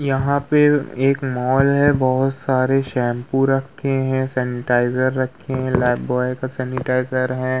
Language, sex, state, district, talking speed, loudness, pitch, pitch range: Hindi, male, Uttar Pradesh, Muzaffarnagar, 135 wpm, -19 LUFS, 130 Hz, 130-135 Hz